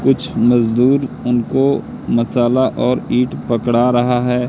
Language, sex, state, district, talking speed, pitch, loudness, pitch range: Hindi, male, Madhya Pradesh, Katni, 120 wpm, 125 Hz, -16 LUFS, 120-130 Hz